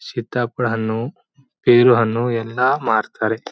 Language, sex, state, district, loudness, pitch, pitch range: Kannada, male, Karnataka, Bijapur, -18 LUFS, 120 Hz, 115-125 Hz